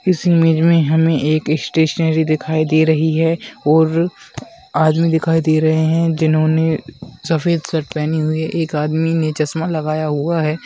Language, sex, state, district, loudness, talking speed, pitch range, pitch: Hindi, female, West Bengal, Dakshin Dinajpur, -16 LUFS, 160 wpm, 155-165 Hz, 160 Hz